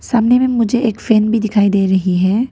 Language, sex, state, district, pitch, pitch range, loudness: Hindi, female, Arunachal Pradesh, Papum Pare, 220 Hz, 200-235 Hz, -14 LUFS